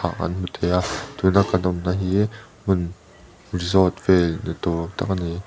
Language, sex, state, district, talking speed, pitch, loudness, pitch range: Mizo, male, Mizoram, Aizawl, 185 wpm, 90 Hz, -22 LUFS, 85-95 Hz